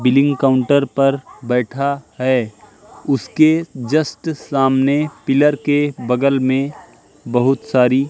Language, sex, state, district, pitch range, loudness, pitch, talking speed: Hindi, male, Madhya Pradesh, Katni, 130-145 Hz, -17 LUFS, 135 Hz, 105 wpm